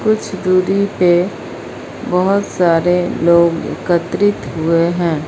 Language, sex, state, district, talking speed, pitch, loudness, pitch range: Hindi, female, Uttar Pradesh, Lucknow, 100 wpm, 180 Hz, -15 LUFS, 170-195 Hz